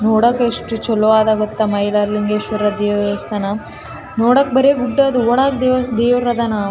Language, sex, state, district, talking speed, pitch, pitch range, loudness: Kannada, female, Karnataka, Raichur, 135 wpm, 220 Hz, 210-245 Hz, -16 LUFS